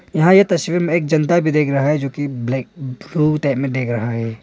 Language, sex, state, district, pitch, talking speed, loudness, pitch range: Hindi, male, Arunachal Pradesh, Longding, 145 Hz, 245 wpm, -17 LUFS, 130-165 Hz